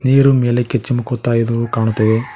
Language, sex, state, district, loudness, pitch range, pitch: Kannada, male, Karnataka, Koppal, -16 LUFS, 115-125 Hz, 120 Hz